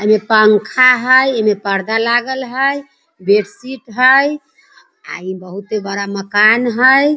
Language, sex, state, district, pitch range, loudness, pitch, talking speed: Hindi, female, Bihar, Sitamarhi, 205-260 Hz, -13 LUFS, 225 Hz, 140 wpm